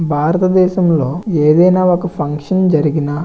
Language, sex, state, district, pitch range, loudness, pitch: Telugu, male, Andhra Pradesh, Visakhapatnam, 150-185 Hz, -13 LUFS, 165 Hz